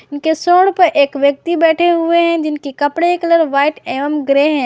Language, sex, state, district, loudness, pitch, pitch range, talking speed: Hindi, female, Jharkhand, Garhwa, -14 LUFS, 315 Hz, 285-340 Hz, 195 wpm